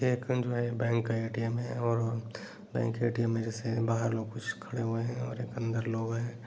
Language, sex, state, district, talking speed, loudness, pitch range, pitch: Hindi, male, Bihar, Jahanabad, 195 wpm, -32 LUFS, 115-120 Hz, 115 Hz